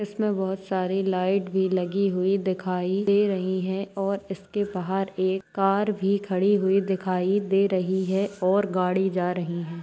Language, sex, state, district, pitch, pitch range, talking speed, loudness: Hindi, female, Bihar, Madhepura, 190 Hz, 185-195 Hz, 170 wpm, -25 LUFS